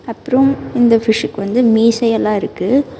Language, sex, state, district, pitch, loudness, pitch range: Tamil, female, Karnataka, Bangalore, 230 Hz, -14 LUFS, 220-260 Hz